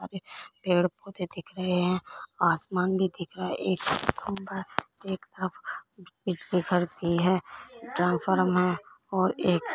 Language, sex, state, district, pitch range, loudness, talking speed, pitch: Hindi, female, Punjab, Fazilka, 175-190 Hz, -28 LUFS, 125 wpm, 180 Hz